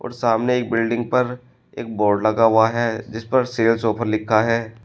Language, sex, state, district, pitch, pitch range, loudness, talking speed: Hindi, male, Uttar Pradesh, Shamli, 115 Hz, 110-120 Hz, -19 LUFS, 200 wpm